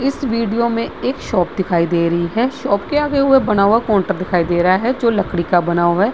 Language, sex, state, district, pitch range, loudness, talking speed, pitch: Hindi, female, Bihar, Vaishali, 175-240 Hz, -16 LUFS, 255 wpm, 205 Hz